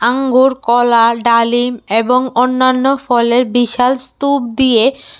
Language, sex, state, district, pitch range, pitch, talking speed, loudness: Bengali, female, Tripura, West Tripura, 235-260 Hz, 245 Hz, 105 wpm, -12 LUFS